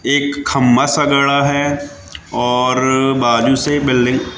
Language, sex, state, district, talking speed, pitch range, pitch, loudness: Hindi, male, Madhya Pradesh, Katni, 135 wpm, 125-145 Hz, 135 Hz, -14 LUFS